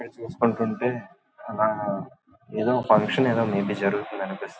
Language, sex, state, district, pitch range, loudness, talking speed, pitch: Telugu, male, Andhra Pradesh, Visakhapatnam, 105-125 Hz, -25 LUFS, 130 wpm, 115 Hz